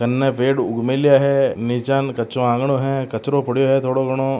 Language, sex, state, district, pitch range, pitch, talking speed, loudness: Marwari, male, Rajasthan, Churu, 125-135 Hz, 135 Hz, 190 wpm, -18 LUFS